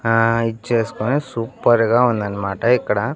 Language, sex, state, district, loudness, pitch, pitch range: Telugu, male, Andhra Pradesh, Annamaya, -18 LUFS, 115 Hz, 110-120 Hz